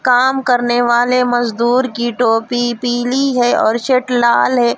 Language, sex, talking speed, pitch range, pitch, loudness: Hindi, female, 150 wpm, 240-250 Hz, 245 Hz, -14 LUFS